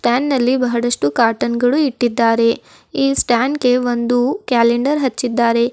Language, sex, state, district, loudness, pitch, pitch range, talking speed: Kannada, female, Karnataka, Bidar, -16 LUFS, 245 Hz, 235-260 Hz, 125 wpm